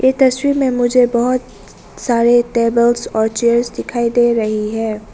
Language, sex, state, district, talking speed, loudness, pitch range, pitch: Hindi, female, Arunachal Pradesh, Lower Dibang Valley, 150 wpm, -15 LUFS, 230-250 Hz, 235 Hz